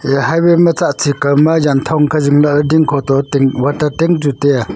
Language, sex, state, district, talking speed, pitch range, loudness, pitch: Wancho, male, Arunachal Pradesh, Longding, 265 wpm, 140-160 Hz, -12 LUFS, 145 Hz